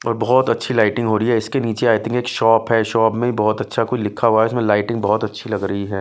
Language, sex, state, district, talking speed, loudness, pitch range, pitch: Hindi, male, Bihar, West Champaran, 290 wpm, -18 LUFS, 110-120 Hz, 115 Hz